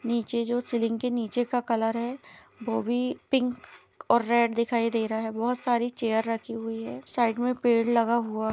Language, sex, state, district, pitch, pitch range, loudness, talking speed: Hindi, female, Chhattisgarh, Bilaspur, 235 Hz, 225-245 Hz, -27 LUFS, 195 wpm